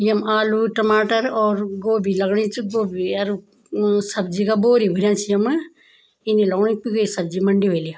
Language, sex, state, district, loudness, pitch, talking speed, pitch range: Garhwali, female, Uttarakhand, Tehri Garhwal, -19 LUFS, 210 Hz, 180 wpm, 200-220 Hz